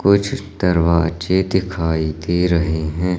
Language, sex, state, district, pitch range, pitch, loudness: Hindi, male, Madhya Pradesh, Katni, 80-95 Hz, 90 Hz, -18 LUFS